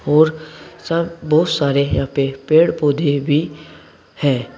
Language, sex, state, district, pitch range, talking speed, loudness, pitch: Hindi, male, Uttar Pradesh, Saharanpur, 140-155 Hz, 130 wpm, -17 LUFS, 150 Hz